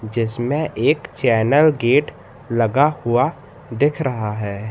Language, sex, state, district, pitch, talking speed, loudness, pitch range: Hindi, male, Madhya Pradesh, Katni, 120 Hz, 115 wpm, -19 LUFS, 110-145 Hz